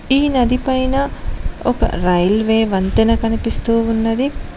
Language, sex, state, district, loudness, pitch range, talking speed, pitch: Telugu, female, Telangana, Mahabubabad, -16 LUFS, 225-260 Hz, 105 wpm, 230 Hz